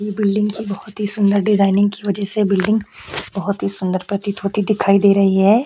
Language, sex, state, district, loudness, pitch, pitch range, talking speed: Hindi, female, Chhattisgarh, Korba, -17 LUFS, 200 Hz, 195-210 Hz, 220 wpm